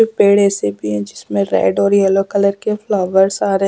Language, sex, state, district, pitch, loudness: Hindi, female, Punjab, Pathankot, 195 Hz, -15 LUFS